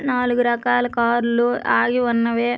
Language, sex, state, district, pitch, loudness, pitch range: Telugu, female, Andhra Pradesh, Krishna, 240 Hz, -19 LUFS, 235-245 Hz